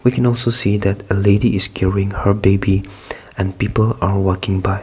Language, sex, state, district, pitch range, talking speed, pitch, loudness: English, male, Nagaland, Kohima, 95-110 Hz, 200 wpm, 100 Hz, -17 LUFS